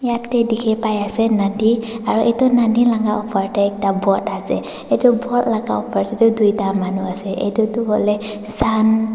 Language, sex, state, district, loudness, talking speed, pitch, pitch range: Nagamese, female, Nagaland, Dimapur, -18 LUFS, 165 wpm, 220 Hz, 205-230 Hz